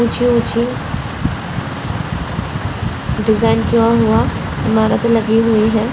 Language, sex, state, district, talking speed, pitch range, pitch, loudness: Hindi, female, Uttar Pradesh, Etah, 80 wpm, 220-235 Hz, 230 Hz, -16 LUFS